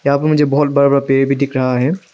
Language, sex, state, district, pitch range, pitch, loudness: Hindi, male, Arunachal Pradesh, Lower Dibang Valley, 135-145 Hz, 140 Hz, -14 LUFS